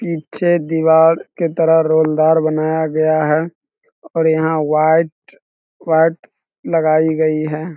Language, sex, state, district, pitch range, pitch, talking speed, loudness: Hindi, male, Bihar, East Champaran, 155-165 Hz, 160 Hz, 115 wpm, -15 LUFS